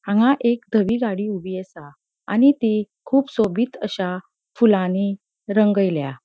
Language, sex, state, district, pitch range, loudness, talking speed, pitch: Konkani, female, Goa, North and South Goa, 190-235 Hz, -20 LUFS, 125 wpm, 205 Hz